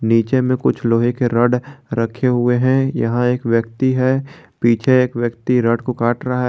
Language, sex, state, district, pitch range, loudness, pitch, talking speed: Hindi, male, Jharkhand, Garhwa, 115-130 Hz, -17 LUFS, 125 Hz, 195 wpm